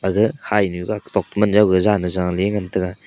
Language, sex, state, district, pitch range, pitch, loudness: Wancho, male, Arunachal Pradesh, Longding, 90-105 Hz, 100 Hz, -19 LUFS